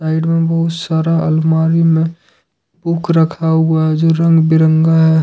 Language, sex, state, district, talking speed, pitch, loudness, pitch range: Hindi, male, Jharkhand, Ranchi, 140 wpm, 160 Hz, -13 LUFS, 160-165 Hz